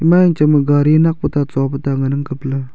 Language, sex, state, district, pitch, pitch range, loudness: Wancho, male, Arunachal Pradesh, Longding, 145 Hz, 135-155 Hz, -15 LUFS